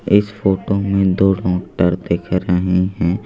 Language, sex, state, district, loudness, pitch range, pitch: Hindi, male, Madhya Pradesh, Bhopal, -17 LUFS, 90-100 Hz, 95 Hz